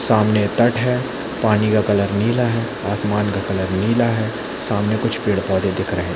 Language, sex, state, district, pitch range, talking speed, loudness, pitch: Hindi, male, Chhattisgarh, Bilaspur, 100-115 Hz, 185 wpm, -19 LUFS, 105 Hz